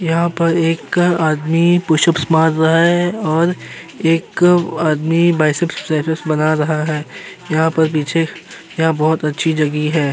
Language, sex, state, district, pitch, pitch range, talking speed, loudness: Hindi, male, Uttar Pradesh, Jyotiba Phule Nagar, 160 Hz, 155-170 Hz, 140 wpm, -15 LUFS